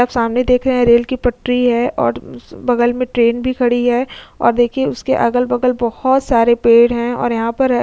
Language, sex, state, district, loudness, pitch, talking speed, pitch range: Hindi, female, Uttar Pradesh, Jyotiba Phule Nagar, -15 LUFS, 245 Hz, 215 wpm, 235-250 Hz